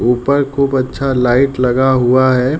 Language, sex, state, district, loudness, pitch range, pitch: Hindi, male, Uttar Pradesh, Deoria, -13 LUFS, 125-135 Hz, 130 Hz